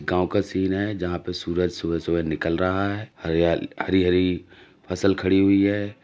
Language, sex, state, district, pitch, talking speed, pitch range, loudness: Hindi, male, Uttar Pradesh, Jalaun, 90 Hz, 180 wpm, 85-100 Hz, -23 LUFS